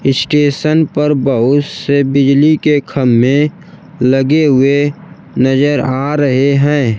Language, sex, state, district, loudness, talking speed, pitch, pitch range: Hindi, male, Bihar, Kaimur, -12 LUFS, 110 wpm, 140 Hz, 135-150 Hz